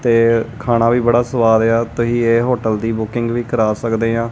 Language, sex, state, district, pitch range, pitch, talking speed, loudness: Punjabi, male, Punjab, Kapurthala, 115-120 Hz, 115 Hz, 210 wpm, -16 LUFS